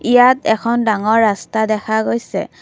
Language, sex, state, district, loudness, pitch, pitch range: Assamese, female, Assam, Kamrup Metropolitan, -15 LUFS, 220 Hz, 215-235 Hz